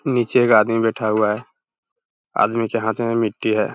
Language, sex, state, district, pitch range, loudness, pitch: Hindi, male, Uttar Pradesh, Hamirpur, 110-115 Hz, -19 LUFS, 115 Hz